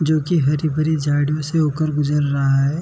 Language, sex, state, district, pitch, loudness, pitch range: Hindi, male, Uttar Pradesh, Jalaun, 150 Hz, -19 LUFS, 145-155 Hz